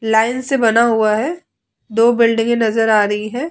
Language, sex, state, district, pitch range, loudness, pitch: Hindi, female, Bihar, Vaishali, 220-235 Hz, -15 LUFS, 225 Hz